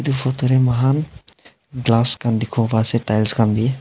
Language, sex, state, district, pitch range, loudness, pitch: Nagamese, male, Nagaland, Dimapur, 115-130 Hz, -18 LUFS, 120 Hz